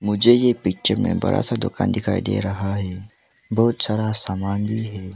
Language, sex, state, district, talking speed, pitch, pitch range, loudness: Hindi, male, Arunachal Pradesh, Lower Dibang Valley, 185 wpm, 105 Hz, 100-110 Hz, -21 LUFS